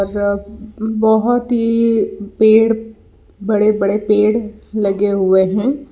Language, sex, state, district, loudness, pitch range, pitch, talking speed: Hindi, female, Karnataka, Bangalore, -15 LUFS, 205-225 Hz, 215 Hz, 90 wpm